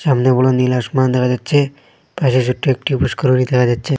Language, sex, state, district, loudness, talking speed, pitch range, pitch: Bengali, male, Assam, Hailakandi, -16 LUFS, 180 wpm, 125-140 Hz, 130 Hz